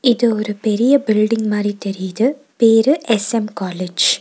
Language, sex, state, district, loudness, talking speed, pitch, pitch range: Tamil, female, Tamil Nadu, Nilgiris, -17 LUFS, 140 wpm, 220 Hz, 210-240 Hz